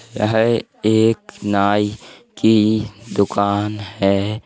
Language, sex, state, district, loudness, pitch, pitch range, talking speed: Hindi, male, Uttar Pradesh, Hamirpur, -18 LUFS, 105 Hz, 100-110 Hz, 80 wpm